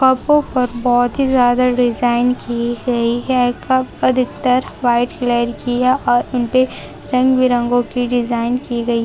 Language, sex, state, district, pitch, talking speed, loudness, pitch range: Hindi, female, Chhattisgarh, Raipur, 245 Hz, 150 wpm, -16 LUFS, 240-255 Hz